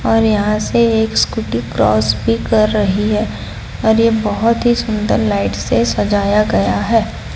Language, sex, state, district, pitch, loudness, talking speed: Hindi, female, Odisha, Sambalpur, 210 Hz, -15 LUFS, 165 wpm